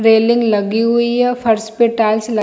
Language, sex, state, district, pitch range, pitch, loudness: Hindi, female, Jharkhand, Jamtara, 220-235 Hz, 225 Hz, -14 LUFS